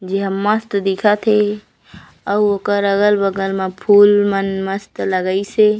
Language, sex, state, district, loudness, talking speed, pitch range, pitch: Chhattisgarhi, female, Chhattisgarh, Raigarh, -16 LUFS, 135 wpm, 195-210 Hz, 200 Hz